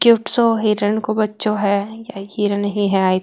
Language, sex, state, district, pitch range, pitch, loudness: Marwari, female, Rajasthan, Nagaur, 200-220 Hz, 210 Hz, -18 LUFS